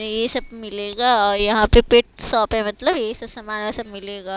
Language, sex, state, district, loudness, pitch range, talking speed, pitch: Hindi, female, Himachal Pradesh, Shimla, -18 LUFS, 210-235 Hz, 220 wpm, 220 Hz